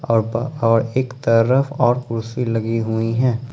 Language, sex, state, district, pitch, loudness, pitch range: Hindi, male, Jharkhand, Ranchi, 115 Hz, -19 LUFS, 115-130 Hz